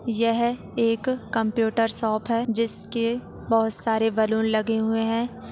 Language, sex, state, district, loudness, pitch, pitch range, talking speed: Hindi, female, Chhattisgarh, Jashpur, -21 LUFS, 225 Hz, 225-230 Hz, 140 wpm